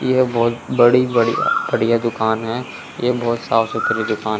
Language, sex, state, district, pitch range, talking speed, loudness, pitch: Hindi, male, Chandigarh, Chandigarh, 115-120 Hz, 165 wpm, -18 LUFS, 115 Hz